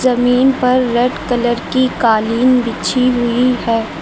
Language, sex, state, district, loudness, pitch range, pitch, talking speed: Hindi, female, Uttar Pradesh, Lucknow, -14 LUFS, 235-255 Hz, 245 Hz, 135 wpm